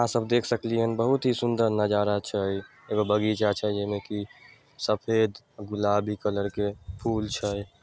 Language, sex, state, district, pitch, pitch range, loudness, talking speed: Maithili, male, Bihar, Samastipur, 105 Hz, 105-115 Hz, -27 LUFS, 160 wpm